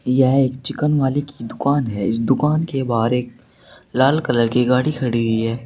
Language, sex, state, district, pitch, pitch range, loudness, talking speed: Hindi, male, Uttar Pradesh, Saharanpur, 130 Hz, 115-140 Hz, -19 LUFS, 200 wpm